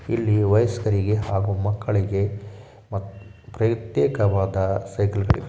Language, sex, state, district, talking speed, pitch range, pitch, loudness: Kannada, male, Karnataka, Shimoga, 100 wpm, 100-110 Hz, 105 Hz, -23 LUFS